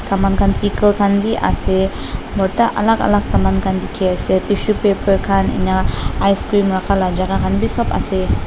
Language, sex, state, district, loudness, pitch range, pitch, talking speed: Nagamese, female, Nagaland, Dimapur, -16 LUFS, 180-205 Hz, 195 Hz, 185 wpm